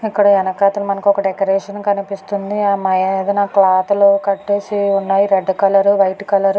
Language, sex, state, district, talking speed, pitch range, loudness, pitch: Telugu, female, Andhra Pradesh, Anantapur, 135 wpm, 195-200 Hz, -15 LUFS, 200 Hz